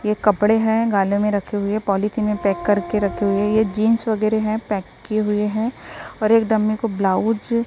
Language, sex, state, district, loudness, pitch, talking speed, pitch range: Hindi, female, Maharashtra, Gondia, -20 LUFS, 215 Hz, 210 wpm, 205-220 Hz